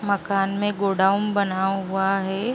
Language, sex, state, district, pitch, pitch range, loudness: Hindi, female, Uttar Pradesh, Jalaun, 195 Hz, 195-200 Hz, -22 LUFS